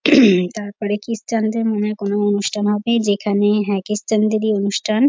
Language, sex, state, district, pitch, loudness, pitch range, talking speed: Bengali, female, West Bengal, North 24 Parganas, 210 Hz, -18 LUFS, 205-220 Hz, 140 wpm